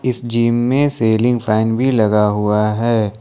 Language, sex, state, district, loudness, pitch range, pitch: Hindi, male, Jharkhand, Ranchi, -16 LUFS, 110-120 Hz, 115 Hz